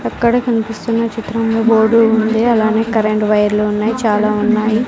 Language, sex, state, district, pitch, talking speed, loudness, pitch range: Telugu, female, Andhra Pradesh, Sri Satya Sai, 220 Hz, 135 wpm, -14 LUFS, 215-230 Hz